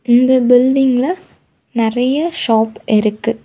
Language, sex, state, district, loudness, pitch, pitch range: Tamil, female, Tamil Nadu, Kanyakumari, -14 LUFS, 245 Hz, 225-260 Hz